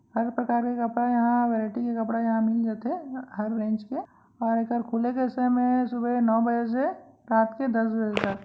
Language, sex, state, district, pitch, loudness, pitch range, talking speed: Chhattisgarhi, female, Chhattisgarh, Raigarh, 235 Hz, -26 LUFS, 225-245 Hz, 200 wpm